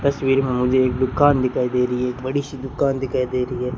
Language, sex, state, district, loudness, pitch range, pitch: Hindi, male, Rajasthan, Bikaner, -20 LUFS, 125-135 Hz, 130 Hz